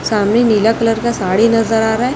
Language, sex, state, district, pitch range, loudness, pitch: Hindi, male, Chhattisgarh, Raipur, 220-230 Hz, -13 LUFS, 225 Hz